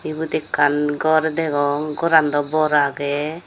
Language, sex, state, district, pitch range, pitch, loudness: Chakma, female, Tripura, Dhalai, 145-155 Hz, 150 Hz, -19 LUFS